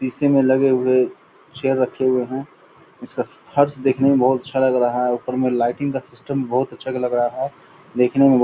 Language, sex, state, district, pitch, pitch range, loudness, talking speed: Angika, male, Bihar, Purnia, 130 Hz, 125-135 Hz, -20 LUFS, 225 wpm